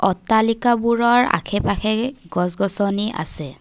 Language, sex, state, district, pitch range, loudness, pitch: Assamese, female, Assam, Kamrup Metropolitan, 185-235 Hz, -18 LUFS, 215 Hz